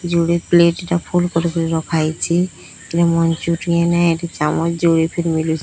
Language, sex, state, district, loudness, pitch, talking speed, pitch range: Odia, female, Odisha, Sambalpur, -17 LUFS, 170 Hz, 150 wpm, 165-170 Hz